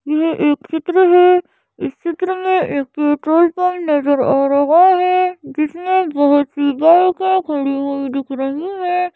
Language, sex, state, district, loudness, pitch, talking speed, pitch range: Hindi, female, Madhya Pradesh, Bhopal, -15 LUFS, 320 Hz, 150 wpm, 285-360 Hz